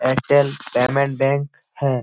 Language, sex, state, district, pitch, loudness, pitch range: Hindi, male, Uttar Pradesh, Etah, 140 Hz, -19 LUFS, 135-140 Hz